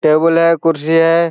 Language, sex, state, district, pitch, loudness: Hindi, male, Bihar, Jahanabad, 165 Hz, -12 LUFS